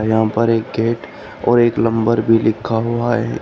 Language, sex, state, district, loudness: Hindi, male, Uttar Pradesh, Shamli, -17 LUFS